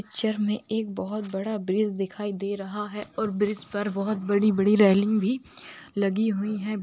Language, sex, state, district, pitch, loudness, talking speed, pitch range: Hindi, female, Bihar, Darbhanga, 210 Hz, -26 LUFS, 175 wpm, 200-215 Hz